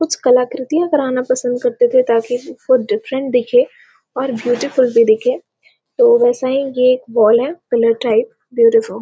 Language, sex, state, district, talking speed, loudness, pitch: Hindi, female, Chhattisgarh, Korba, 165 wpm, -15 LUFS, 260 Hz